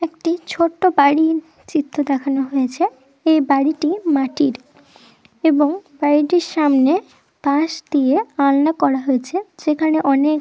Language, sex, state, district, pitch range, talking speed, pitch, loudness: Bengali, female, West Bengal, Dakshin Dinajpur, 280-325 Hz, 115 wpm, 300 Hz, -18 LUFS